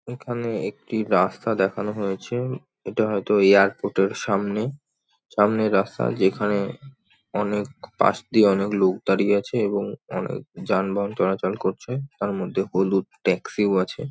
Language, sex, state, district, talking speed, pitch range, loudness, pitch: Bengali, male, West Bengal, North 24 Parganas, 125 wpm, 95-115 Hz, -23 LUFS, 100 Hz